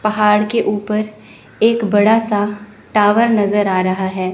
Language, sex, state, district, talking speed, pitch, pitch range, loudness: Hindi, female, Chandigarh, Chandigarh, 150 wpm, 210 Hz, 205-215 Hz, -15 LUFS